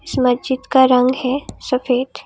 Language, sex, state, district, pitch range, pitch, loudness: Hindi, female, Assam, Kamrup Metropolitan, 250-265 Hz, 255 Hz, -17 LUFS